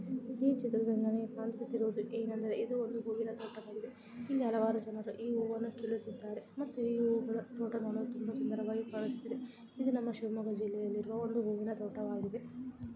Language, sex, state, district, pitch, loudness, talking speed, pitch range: Kannada, female, Karnataka, Shimoga, 225 Hz, -37 LUFS, 125 wpm, 220-235 Hz